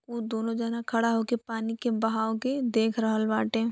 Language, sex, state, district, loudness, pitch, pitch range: Bhojpuri, female, Uttar Pradesh, Deoria, -28 LUFS, 230 Hz, 225-235 Hz